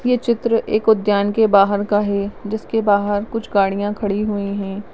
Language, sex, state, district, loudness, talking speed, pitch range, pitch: Hindi, female, Rajasthan, Nagaur, -18 LUFS, 180 wpm, 200-220 Hz, 205 Hz